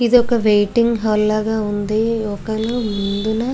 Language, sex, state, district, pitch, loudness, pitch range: Telugu, female, Andhra Pradesh, Guntur, 220 Hz, -18 LUFS, 210-235 Hz